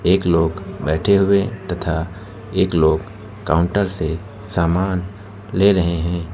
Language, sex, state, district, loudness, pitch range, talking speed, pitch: Hindi, male, Uttar Pradesh, Lucknow, -19 LUFS, 85-100 Hz, 135 wpm, 95 Hz